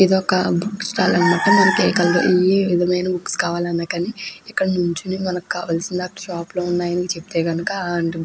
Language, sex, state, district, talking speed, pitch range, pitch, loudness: Telugu, female, Andhra Pradesh, Krishna, 160 wpm, 175-185 Hz, 180 Hz, -19 LUFS